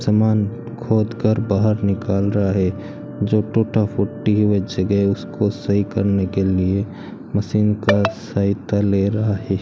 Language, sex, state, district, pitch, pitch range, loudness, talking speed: Hindi, male, Rajasthan, Bikaner, 100 Hz, 100-110 Hz, -19 LUFS, 145 wpm